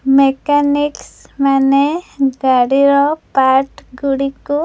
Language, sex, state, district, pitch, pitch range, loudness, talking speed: Odia, female, Odisha, Khordha, 275 Hz, 270-285 Hz, -14 LUFS, 75 wpm